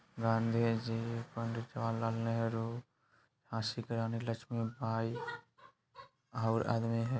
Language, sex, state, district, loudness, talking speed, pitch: Bajjika, male, Bihar, Vaishali, -37 LUFS, 125 wpm, 115 Hz